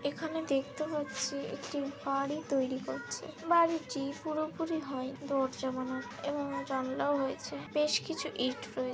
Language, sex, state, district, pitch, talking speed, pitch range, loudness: Bengali, female, West Bengal, Jalpaiguri, 275 Hz, 140 wpm, 265-300 Hz, -34 LUFS